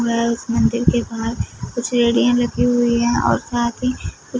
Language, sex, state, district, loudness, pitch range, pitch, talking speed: Hindi, female, Punjab, Fazilka, -19 LUFS, 235-245 Hz, 240 Hz, 165 wpm